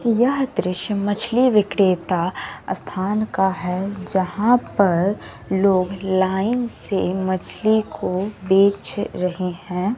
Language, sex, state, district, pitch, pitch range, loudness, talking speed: Hindi, female, Bihar, West Champaran, 195 Hz, 185-215 Hz, -20 LUFS, 100 wpm